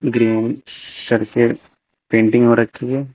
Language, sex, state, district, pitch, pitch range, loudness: Hindi, male, Uttar Pradesh, Lucknow, 115 Hz, 110-120 Hz, -17 LUFS